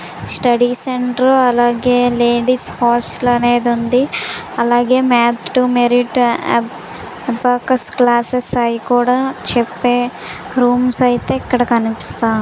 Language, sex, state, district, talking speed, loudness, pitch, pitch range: Telugu, female, Andhra Pradesh, Visakhapatnam, 105 wpm, -14 LUFS, 245 Hz, 240-250 Hz